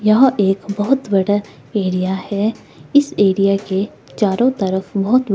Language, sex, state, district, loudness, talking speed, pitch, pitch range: Hindi, female, Himachal Pradesh, Shimla, -17 LUFS, 135 wpm, 200 Hz, 195-220 Hz